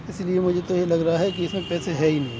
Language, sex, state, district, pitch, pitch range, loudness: Hindi, male, Uttar Pradesh, Etah, 180 Hz, 165-185 Hz, -23 LUFS